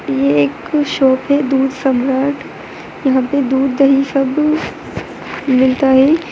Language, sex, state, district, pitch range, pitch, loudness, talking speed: Hindi, female, Bihar, Begusarai, 260-285 Hz, 270 Hz, -14 LUFS, 125 wpm